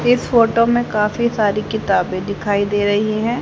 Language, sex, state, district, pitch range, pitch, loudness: Hindi, female, Haryana, Jhajjar, 205-230 Hz, 215 Hz, -17 LUFS